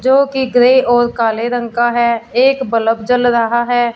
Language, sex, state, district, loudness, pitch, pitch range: Hindi, female, Punjab, Fazilka, -13 LUFS, 240 Hz, 235-250 Hz